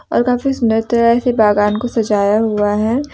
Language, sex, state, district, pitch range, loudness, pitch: Hindi, female, Jharkhand, Deoghar, 210-245 Hz, -15 LUFS, 225 Hz